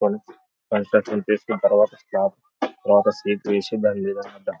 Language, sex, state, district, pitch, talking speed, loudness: Telugu, male, Telangana, Nalgonda, 105 Hz, 50 wpm, -22 LUFS